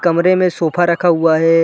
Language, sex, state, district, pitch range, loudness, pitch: Hindi, male, Chhattisgarh, Sarguja, 165-175 Hz, -14 LUFS, 170 Hz